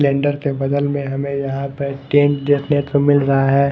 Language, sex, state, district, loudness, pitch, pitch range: Hindi, female, Himachal Pradesh, Shimla, -17 LUFS, 140 Hz, 140-145 Hz